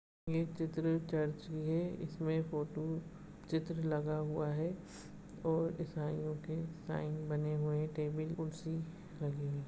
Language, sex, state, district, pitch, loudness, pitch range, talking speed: Hindi, male, Goa, North and South Goa, 160 Hz, -39 LUFS, 155-165 Hz, 140 wpm